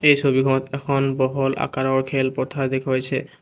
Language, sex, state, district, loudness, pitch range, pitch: Assamese, male, Assam, Kamrup Metropolitan, -21 LUFS, 130-140 Hz, 135 Hz